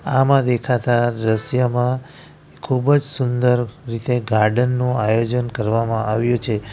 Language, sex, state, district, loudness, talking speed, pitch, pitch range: Gujarati, male, Gujarat, Valsad, -19 LUFS, 115 wpm, 125 Hz, 115-125 Hz